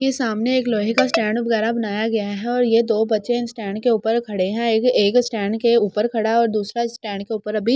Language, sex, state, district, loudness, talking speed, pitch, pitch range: Hindi, female, Delhi, New Delhi, -20 LUFS, 200 wpm, 225 Hz, 215-235 Hz